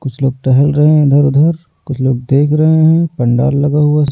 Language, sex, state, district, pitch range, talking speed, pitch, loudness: Hindi, male, Delhi, New Delhi, 135-150 Hz, 220 wpm, 145 Hz, -11 LUFS